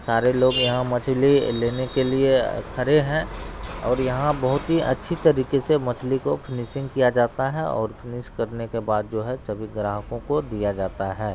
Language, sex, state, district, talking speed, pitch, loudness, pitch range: Bhojpuri, male, Bihar, Saran, 185 wpm, 125 Hz, -23 LUFS, 115-135 Hz